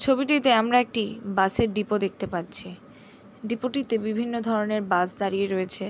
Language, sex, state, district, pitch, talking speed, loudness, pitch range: Bengali, female, West Bengal, Jhargram, 215 Hz, 150 wpm, -25 LUFS, 195-235 Hz